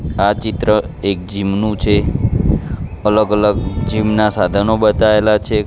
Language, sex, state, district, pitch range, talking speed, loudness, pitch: Gujarati, male, Gujarat, Gandhinagar, 100-110 Hz, 135 wpm, -15 LUFS, 105 Hz